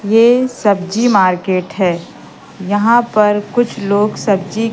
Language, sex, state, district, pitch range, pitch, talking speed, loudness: Hindi, female, Madhya Pradesh, Katni, 190-230 Hz, 205 Hz, 115 wpm, -14 LUFS